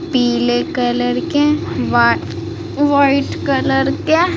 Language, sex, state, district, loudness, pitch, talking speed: Hindi, female, Uttar Pradesh, Saharanpur, -16 LUFS, 245 Hz, 110 wpm